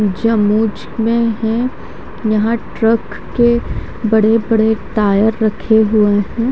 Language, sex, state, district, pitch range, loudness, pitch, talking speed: Hindi, female, Haryana, Charkhi Dadri, 215-230 Hz, -15 LUFS, 220 Hz, 120 wpm